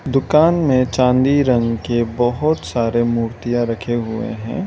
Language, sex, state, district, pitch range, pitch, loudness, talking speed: Hindi, male, Arunachal Pradesh, Lower Dibang Valley, 115-130 Hz, 120 Hz, -17 LUFS, 140 wpm